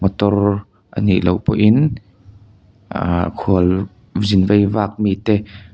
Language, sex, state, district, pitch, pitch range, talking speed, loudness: Mizo, male, Mizoram, Aizawl, 100 Hz, 95-105 Hz, 95 wpm, -17 LUFS